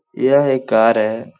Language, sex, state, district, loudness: Hindi, male, Bihar, Lakhisarai, -15 LUFS